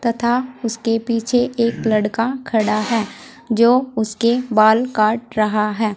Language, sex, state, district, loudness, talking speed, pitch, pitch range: Hindi, female, Uttar Pradesh, Saharanpur, -18 LUFS, 130 wpm, 230 Hz, 215-240 Hz